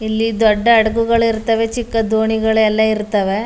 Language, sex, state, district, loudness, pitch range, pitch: Kannada, female, Karnataka, Mysore, -15 LUFS, 220-225 Hz, 220 Hz